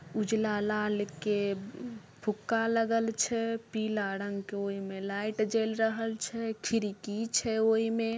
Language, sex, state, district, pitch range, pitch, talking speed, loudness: Maithili, female, Bihar, Samastipur, 205-225 Hz, 215 Hz, 140 wpm, -31 LUFS